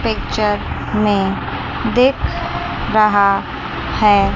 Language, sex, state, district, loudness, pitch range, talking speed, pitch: Hindi, female, Chandigarh, Chandigarh, -17 LUFS, 200-215 Hz, 70 wpm, 210 Hz